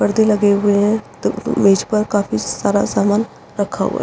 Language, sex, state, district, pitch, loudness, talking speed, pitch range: Hindi, female, Uttarakhand, Uttarkashi, 205 Hz, -17 LUFS, 180 wpm, 200-210 Hz